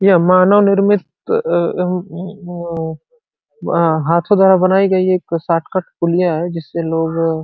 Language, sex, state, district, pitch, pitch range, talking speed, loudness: Hindi, male, Uttar Pradesh, Ghazipur, 175 Hz, 165-190 Hz, 130 wpm, -15 LUFS